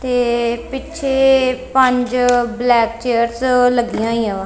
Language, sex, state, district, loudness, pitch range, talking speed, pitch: Punjabi, female, Punjab, Kapurthala, -16 LUFS, 235-255 Hz, 105 wpm, 245 Hz